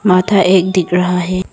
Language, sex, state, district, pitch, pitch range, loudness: Hindi, female, Arunachal Pradesh, Lower Dibang Valley, 185 Hz, 180-185 Hz, -13 LUFS